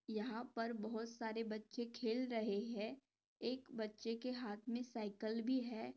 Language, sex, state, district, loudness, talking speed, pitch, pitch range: Hindi, female, Maharashtra, Nagpur, -44 LUFS, 160 wpm, 230 Hz, 220-240 Hz